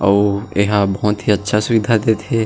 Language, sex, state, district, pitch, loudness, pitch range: Chhattisgarhi, male, Chhattisgarh, Sarguja, 105 Hz, -16 LUFS, 100-110 Hz